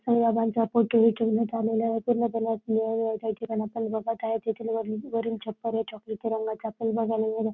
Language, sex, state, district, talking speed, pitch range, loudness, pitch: Marathi, female, Maharashtra, Dhule, 215 wpm, 220-230 Hz, -27 LUFS, 225 Hz